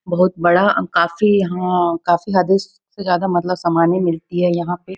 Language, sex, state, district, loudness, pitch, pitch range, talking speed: Hindi, female, Chhattisgarh, Bastar, -17 LUFS, 180 Hz, 175-190 Hz, 170 wpm